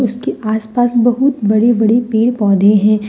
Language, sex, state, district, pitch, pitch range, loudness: Hindi, female, Jharkhand, Deoghar, 220 Hz, 215-240 Hz, -13 LUFS